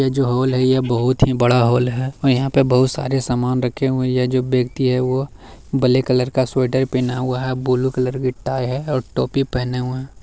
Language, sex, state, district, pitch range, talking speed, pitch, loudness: Hindi, male, Bihar, Bhagalpur, 125-130 Hz, 240 wpm, 130 Hz, -18 LUFS